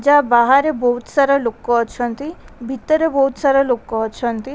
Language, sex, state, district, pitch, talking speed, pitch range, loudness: Odia, female, Odisha, Khordha, 260 Hz, 145 wpm, 235-280 Hz, -16 LUFS